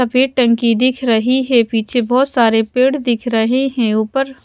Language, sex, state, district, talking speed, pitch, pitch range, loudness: Hindi, female, Haryana, Jhajjar, 175 wpm, 245 Hz, 230-260 Hz, -15 LUFS